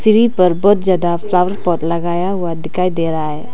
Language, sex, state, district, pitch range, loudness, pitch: Hindi, female, Arunachal Pradesh, Papum Pare, 170-190 Hz, -16 LUFS, 180 Hz